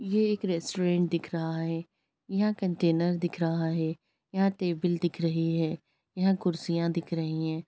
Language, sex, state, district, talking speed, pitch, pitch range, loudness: Hindi, female, Bihar, Gaya, 165 wpm, 170 Hz, 165-185 Hz, -29 LUFS